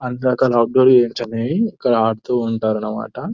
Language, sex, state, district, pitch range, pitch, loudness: Telugu, male, Telangana, Nalgonda, 115-130 Hz, 120 Hz, -17 LUFS